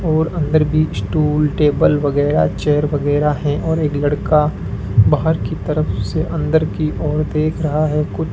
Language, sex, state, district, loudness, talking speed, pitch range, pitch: Hindi, male, Rajasthan, Bikaner, -17 LUFS, 175 wpm, 145-155 Hz, 150 Hz